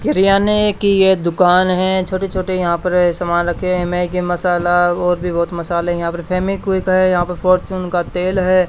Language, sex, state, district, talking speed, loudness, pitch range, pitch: Hindi, male, Haryana, Charkhi Dadri, 185 wpm, -16 LUFS, 175-185 Hz, 180 Hz